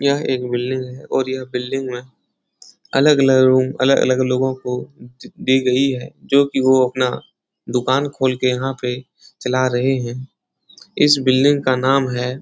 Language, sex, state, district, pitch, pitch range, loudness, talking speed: Hindi, male, Uttar Pradesh, Etah, 130 Hz, 125-135 Hz, -18 LUFS, 155 wpm